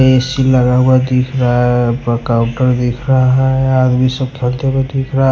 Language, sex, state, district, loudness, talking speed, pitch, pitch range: Hindi, male, Punjab, Pathankot, -13 LUFS, 80 wpm, 130 Hz, 125-130 Hz